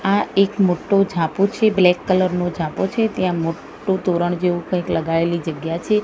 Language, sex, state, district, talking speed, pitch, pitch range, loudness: Gujarati, female, Gujarat, Gandhinagar, 180 wpm, 180 Hz, 170-195 Hz, -19 LUFS